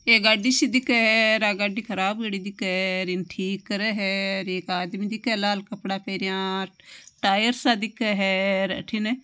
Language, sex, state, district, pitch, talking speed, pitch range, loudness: Marwari, female, Rajasthan, Nagaur, 205 Hz, 180 wpm, 190-220 Hz, -23 LUFS